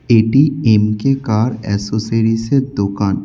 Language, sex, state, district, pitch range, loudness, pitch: Bengali, male, West Bengal, Alipurduar, 105-130 Hz, -15 LUFS, 110 Hz